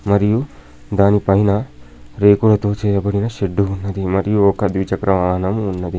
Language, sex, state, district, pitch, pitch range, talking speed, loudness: Telugu, male, Telangana, Adilabad, 100 Hz, 95-100 Hz, 110 wpm, -17 LUFS